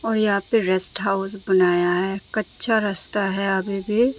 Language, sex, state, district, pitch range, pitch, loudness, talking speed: Hindi, female, Tripura, Dhalai, 190-215 Hz, 195 Hz, -20 LUFS, 170 wpm